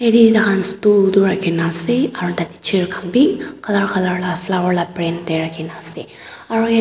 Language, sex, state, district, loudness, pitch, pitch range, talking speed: Nagamese, female, Nagaland, Dimapur, -17 LUFS, 190 Hz, 170-215 Hz, 195 wpm